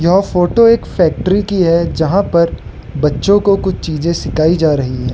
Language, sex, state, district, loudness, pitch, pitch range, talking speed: Hindi, male, Arunachal Pradesh, Lower Dibang Valley, -13 LUFS, 170 Hz, 155-195 Hz, 185 wpm